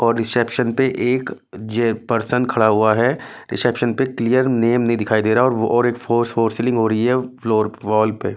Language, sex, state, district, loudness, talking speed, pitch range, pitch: Hindi, male, Delhi, New Delhi, -18 LUFS, 210 wpm, 110-125 Hz, 115 Hz